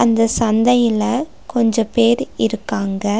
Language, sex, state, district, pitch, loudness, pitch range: Tamil, female, Tamil Nadu, Nilgiris, 225 Hz, -17 LUFS, 220-240 Hz